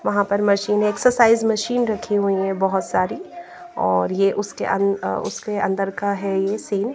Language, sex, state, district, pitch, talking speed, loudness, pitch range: Hindi, female, Bihar, Patna, 205 Hz, 180 wpm, -20 LUFS, 195-225 Hz